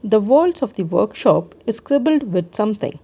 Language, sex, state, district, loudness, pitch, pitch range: English, female, Karnataka, Bangalore, -18 LUFS, 220 Hz, 190-280 Hz